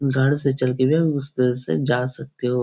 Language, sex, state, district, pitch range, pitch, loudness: Hindi, male, Bihar, Supaul, 125-140 Hz, 130 Hz, -21 LUFS